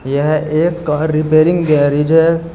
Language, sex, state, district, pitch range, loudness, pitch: Hindi, male, Uttar Pradesh, Shamli, 150-165 Hz, -13 LUFS, 155 Hz